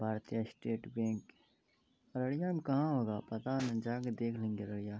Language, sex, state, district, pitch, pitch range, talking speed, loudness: Hindi, male, Bihar, Araria, 115 Hz, 110-130 Hz, 145 wpm, -38 LUFS